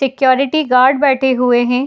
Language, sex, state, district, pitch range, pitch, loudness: Hindi, female, Uttar Pradesh, Etah, 250-270 Hz, 260 Hz, -13 LUFS